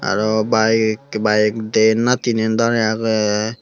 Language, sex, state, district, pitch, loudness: Chakma, male, Tripura, Unakoti, 110 Hz, -17 LUFS